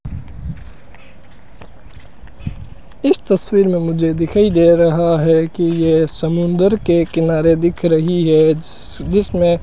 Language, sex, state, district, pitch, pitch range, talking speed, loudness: Hindi, male, Rajasthan, Bikaner, 170 Hz, 165-175 Hz, 120 wpm, -14 LUFS